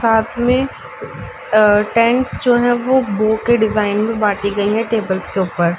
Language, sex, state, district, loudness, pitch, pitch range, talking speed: Hindi, female, Uttar Pradesh, Ghazipur, -16 LUFS, 220 Hz, 205-240 Hz, 175 wpm